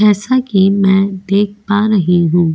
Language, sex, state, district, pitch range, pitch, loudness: Hindi, female, Goa, North and South Goa, 190-205 Hz, 195 Hz, -13 LUFS